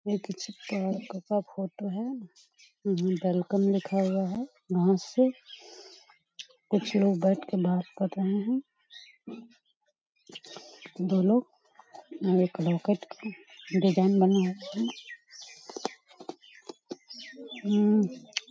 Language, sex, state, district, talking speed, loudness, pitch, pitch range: Hindi, female, Bihar, Lakhisarai, 90 wpm, -28 LUFS, 205 Hz, 190-255 Hz